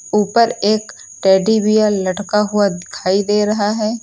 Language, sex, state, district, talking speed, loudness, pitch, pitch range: Hindi, female, Uttar Pradesh, Lucknow, 150 wpm, -16 LUFS, 210 Hz, 200-215 Hz